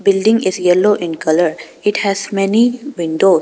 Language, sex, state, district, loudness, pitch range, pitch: English, female, Arunachal Pradesh, Papum Pare, -15 LUFS, 180-210 Hz, 195 Hz